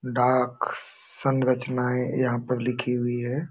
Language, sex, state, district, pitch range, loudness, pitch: Hindi, male, Uttar Pradesh, Jalaun, 125-130 Hz, -26 LUFS, 125 Hz